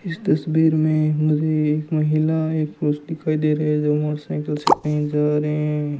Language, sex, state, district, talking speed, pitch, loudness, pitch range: Hindi, male, Rajasthan, Bikaner, 190 wpm, 150 Hz, -20 LUFS, 150-155 Hz